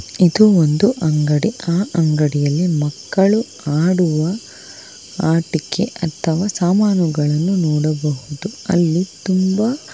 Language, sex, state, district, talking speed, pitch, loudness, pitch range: Kannada, female, Karnataka, Bangalore, 80 wpm, 170 Hz, -17 LUFS, 155-195 Hz